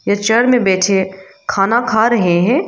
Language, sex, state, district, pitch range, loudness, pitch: Hindi, female, Arunachal Pradesh, Lower Dibang Valley, 190-235 Hz, -14 LUFS, 205 Hz